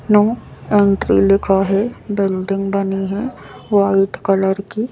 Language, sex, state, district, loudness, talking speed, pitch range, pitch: Hindi, female, Madhya Pradesh, Bhopal, -17 LUFS, 120 wpm, 195-205 Hz, 195 Hz